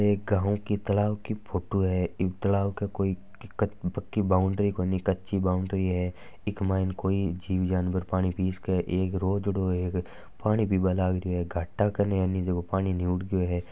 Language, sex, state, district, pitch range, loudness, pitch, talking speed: Marwari, male, Rajasthan, Nagaur, 90-100 Hz, -28 LUFS, 95 Hz, 170 wpm